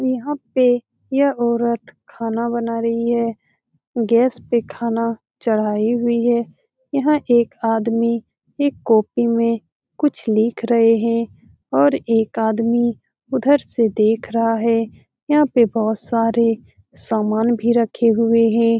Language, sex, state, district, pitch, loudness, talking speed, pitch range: Hindi, female, Bihar, Saran, 230 Hz, -18 LUFS, 130 wpm, 225-240 Hz